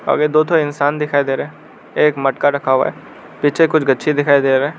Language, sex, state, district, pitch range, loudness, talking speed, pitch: Hindi, male, Arunachal Pradesh, Lower Dibang Valley, 140-150 Hz, -16 LUFS, 250 wpm, 145 Hz